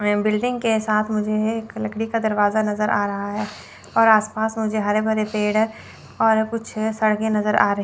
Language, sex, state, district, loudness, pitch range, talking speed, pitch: Hindi, female, Chandigarh, Chandigarh, -21 LUFS, 210-220 Hz, 215 wpm, 215 Hz